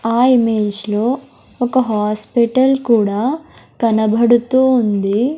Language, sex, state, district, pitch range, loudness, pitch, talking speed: Telugu, male, Andhra Pradesh, Sri Satya Sai, 215-255 Hz, -15 LUFS, 235 Hz, 90 wpm